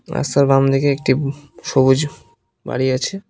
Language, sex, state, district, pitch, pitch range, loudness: Bengali, male, West Bengal, Cooch Behar, 140 Hz, 130-145 Hz, -17 LUFS